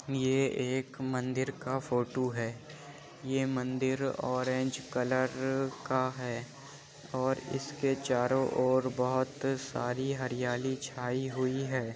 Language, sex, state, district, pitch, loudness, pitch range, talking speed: Hindi, male, Uttar Pradesh, Jyotiba Phule Nagar, 130 Hz, -33 LUFS, 130-135 Hz, 110 wpm